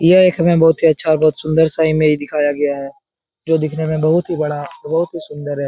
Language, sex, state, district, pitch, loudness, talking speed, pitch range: Hindi, male, Bihar, Jahanabad, 155 Hz, -16 LUFS, 265 wpm, 150-165 Hz